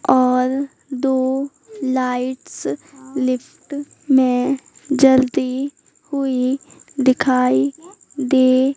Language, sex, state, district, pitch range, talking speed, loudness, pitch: Hindi, female, Madhya Pradesh, Katni, 255-280 Hz, 60 wpm, -19 LUFS, 265 Hz